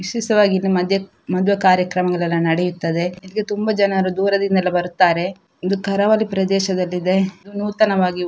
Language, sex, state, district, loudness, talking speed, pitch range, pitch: Kannada, female, Karnataka, Dakshina Kannada, -18 LUFS, 115 wpm, 180-200 Hz, 190 Hz